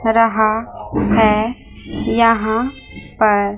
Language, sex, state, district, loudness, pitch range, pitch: Hindi, female, Chandigarh, Chandigarh, -16 LUFS, 215-230 Hz, 220 Hz